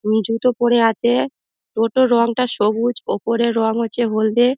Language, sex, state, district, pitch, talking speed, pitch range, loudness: Bengali, female, West Bengal, Dakshin Dinajpur, 235 Hz, 145 wpm, 225-240 Hz, -18 LUFS